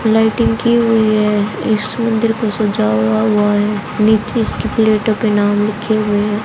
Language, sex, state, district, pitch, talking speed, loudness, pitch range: Hindi, female, Haryana, Jhajjar, 215 Hz, 175 wpm, -14 LUFS, 210-220 Hz